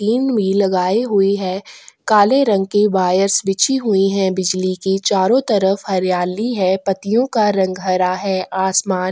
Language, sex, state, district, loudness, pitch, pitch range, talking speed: Hindi, female, Chhattisgarh, Kabirdham, -16 LUFS, 195 Hz, 185-210 Hz, 150 wpm